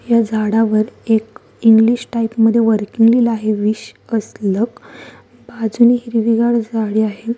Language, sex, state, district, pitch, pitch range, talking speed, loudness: Marathi, female, Maharashtra, Solapur, 225 Hz, 220-235 Hz, 130 wpm, -15 LUFS